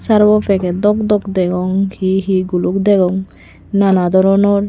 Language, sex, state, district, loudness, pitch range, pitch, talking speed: Chakma, female, Tripura, Unakoti, -14 LUFS, 185-205 Hz, 195 Hz, 115 wpm